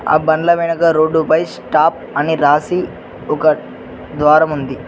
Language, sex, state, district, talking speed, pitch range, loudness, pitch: Telugu, male, Telangana, Mahabubabad, 125 wpm, 145-160 Hz, -14 LUFS, 155 Hz